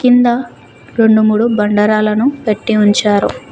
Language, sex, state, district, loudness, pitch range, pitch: Telugu, female, Telangana, Mahabubabad, -12 LUFS, 210-240 Hz, 220 Hz